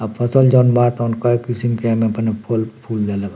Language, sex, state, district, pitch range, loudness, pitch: Bhojpuri, male, Bihar, Muzaffarpur, 110-120 Hz, -17 LUFS, 115 Hz